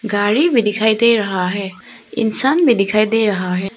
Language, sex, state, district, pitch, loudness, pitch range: Hindi, female, Arunachal Pradesh, Papum Pare, 215 Hz, -15 LUFS, 195-230 Hz